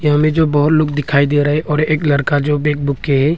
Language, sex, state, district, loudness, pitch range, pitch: Hindi, male, Arunachal Pradesh, Longding, -15 LUFS, 145-155 Hz, 145 Hz